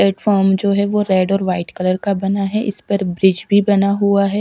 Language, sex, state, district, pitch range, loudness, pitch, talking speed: Hindi, female, Punjab, Kapurthala, 190-200 Hz, -16 LUFS, 200 Hz, 260 wpm